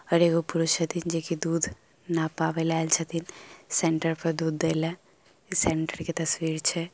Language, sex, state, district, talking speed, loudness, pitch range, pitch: Maithili, female, Bihar, Samastipur, 180 wpm, -27 LUFS, 160-170 Hz, 165 Hz